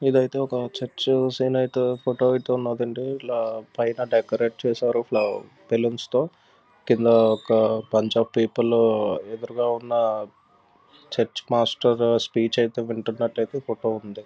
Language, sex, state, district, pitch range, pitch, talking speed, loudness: Telugu, male, Andhra Pradesh, Visakhapatnam, 115-125 Hz, 120 Hz, 120 wpm, -23 LUFS